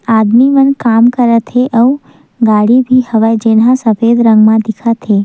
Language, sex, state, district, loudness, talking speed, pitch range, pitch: Chhattisgarhi, female, Chhattisgarh, Sukma, -9 LUFS, 180 wpm, 220-250 Hz, 230 Hz